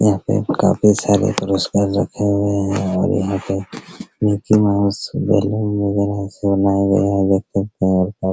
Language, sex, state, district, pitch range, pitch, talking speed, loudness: Hindi, male, Bihar, Araria, 95-105 Hz, 100 Hz, 115 wpm, -18 LUFS